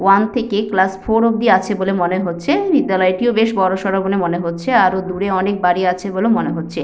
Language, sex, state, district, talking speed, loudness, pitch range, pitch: Bengali, female, West Bengal, Jhargram, 200 wpm, -16 LUFS, 185-215 Hz, 190 Hz